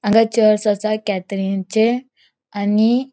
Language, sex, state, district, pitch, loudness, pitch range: Konkani, female, Goa, North and South Goa, 215 Hz, -18 LUFS, 205-225 Hz